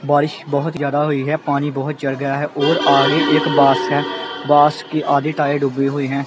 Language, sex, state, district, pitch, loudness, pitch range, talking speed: Punjabi, male, Punjab, Kapurthala, 145 Hz, -17 LUFS, 140-150 Hz, 210 wpm